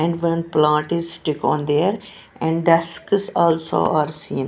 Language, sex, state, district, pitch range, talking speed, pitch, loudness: English, female, Punjab, Pathankot, 150-170 Hz, 160 wpm, 165 Hz, -20 LUFS